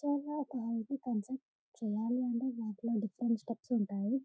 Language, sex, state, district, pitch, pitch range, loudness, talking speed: Telugu, female, Telangana, Karimnagar, 235 Hz, 225-260 Hz, -37 LUFS, 125 wpm